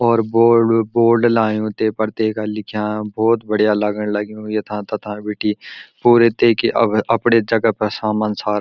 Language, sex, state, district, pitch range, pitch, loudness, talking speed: Garhwali, male, Uttarakhand, Uttarkashi, 105-115 Hz, 110 Hz, -17 LUFS, 160 wpm